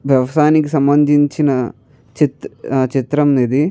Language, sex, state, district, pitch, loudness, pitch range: Telugu, male, Andhra Pradesh, Chittoor, 140 Hz, -15 LUFS, 130-150 Hz